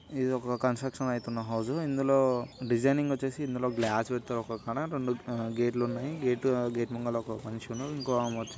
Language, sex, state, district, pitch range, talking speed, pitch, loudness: Telugu, male, Telangana, Nalgonda, 115-135 Hz, 90 wpm, 125 Hz, -31 LUFS